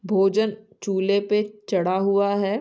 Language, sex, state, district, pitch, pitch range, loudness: Hindi, female, Bihar, Saran, 200 Hz, 195-210 Hz, -22 LUFS